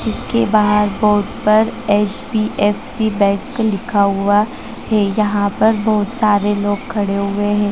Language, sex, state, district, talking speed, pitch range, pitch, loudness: Hindi, female, Uttar Pradesh, Jalaun, 130 wpm, 205-215 Hz, 205 Hz, -16 LUFS